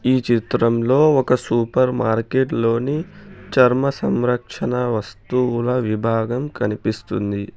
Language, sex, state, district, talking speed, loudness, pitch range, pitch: Telugu, male, Telangana, Hyderabad, 85 wpm, -19 LUFS, 110-130 Hz, 120 Hz